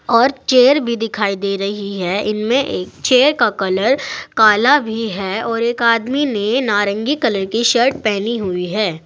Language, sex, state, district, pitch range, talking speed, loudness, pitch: Hindi, female, Uttar Pradesh, Saharanpur, 200-250 Hz, 170 wpm, -16 LUFS, 225 Hz